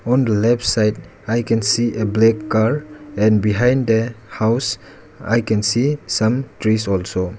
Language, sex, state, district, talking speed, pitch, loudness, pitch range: English, male, Arunachal Pradesh, Lower Dibang Valley, 160 wpm, 115 Hz, -18 LUFS, 110-120 Hz